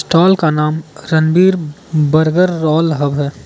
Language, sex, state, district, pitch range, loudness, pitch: Hindi, male, Arunachal Pradesh, Lower Dibang Valley, 150-170 Hz, -13 LUFS, 155 Hz